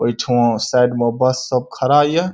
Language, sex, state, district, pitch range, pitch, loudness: Maithili, male, Bihar, Saharsa, 120-130 Hz, 125 Hz, -16 LUFS